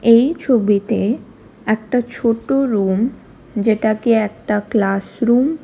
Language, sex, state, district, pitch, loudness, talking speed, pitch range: Bengali, female, Odisha, Khordha, 225 Hz, -17 LUFS, 95 wpm, 210-240 Hz